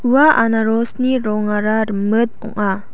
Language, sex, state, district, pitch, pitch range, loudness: Garo, female, Meghalaya, South Garo Hills, 220 Hz, 210-235 Hz, -16 LUFS